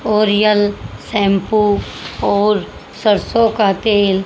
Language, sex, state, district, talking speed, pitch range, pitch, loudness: Hindi, female, Haryana, Jhajjar, 85 wpm, 200-215 Hz, 210 Hz, -15 LUFS